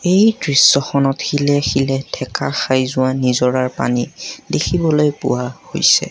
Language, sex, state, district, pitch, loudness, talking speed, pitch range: Assamese, male, Assam, Kamrup Metropolitan, 135 Hz, -16 LUFS, 120 wpm, 130-150 Hz